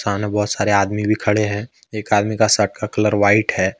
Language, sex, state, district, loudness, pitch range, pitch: Hindi, male, Jharkhand, Ranchi, -18 LUFS, 100-105 Hz, 105 Hz